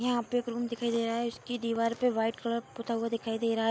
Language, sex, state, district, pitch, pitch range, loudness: Hindi, female, Bihar, Darbhanga, 235 Hz, 230-240 Hz, -32 LUFS